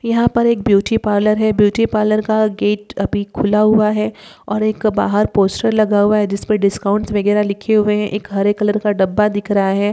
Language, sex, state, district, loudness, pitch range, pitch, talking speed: Hindi, female, Uttar Pradesh, Ghazipur, -16 LUFS, 205-215 Hz, 210 Hz, 210 wpm